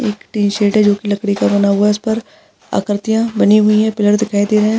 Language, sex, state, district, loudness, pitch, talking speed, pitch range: Hindi, female, Maharashtra, Aurangabad, -14 LUFS, 210 Hz, 210 wpm, 205-220 Hz